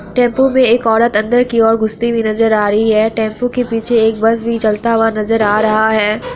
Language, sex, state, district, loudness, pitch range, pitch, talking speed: Hindi, female, Bihar, Araria, -13 LUFS, 215-235 Hz, 225 Hz, 235 wpm